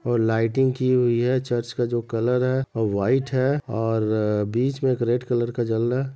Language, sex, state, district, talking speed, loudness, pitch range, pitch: Hindi, male, Bihar, Madhepura, 215 wpm, -23 LUFS, 115-130 Hz, 120 Hz